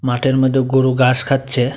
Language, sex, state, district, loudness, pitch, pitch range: Bengali, male, Tripura, Dhalai, -15 LUFS, 130 Hz, 125-135 Hz